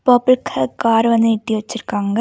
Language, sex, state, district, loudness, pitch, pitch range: Tamil, female, Karnataka, Bangalore, -17 LUFS, 225 Hz, 210-235 Hz